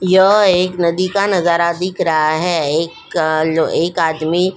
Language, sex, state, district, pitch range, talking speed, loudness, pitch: Hindi, female, Goa, North and South Goa, 165-185 Hz, 155 wpm, -15 LUFS, 175 Hz